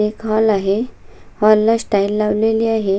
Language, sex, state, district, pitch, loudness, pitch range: Marathi, female, Maharashtra, Sindhudurg, 215 Hz, -16 LUFS, 210-225 Hz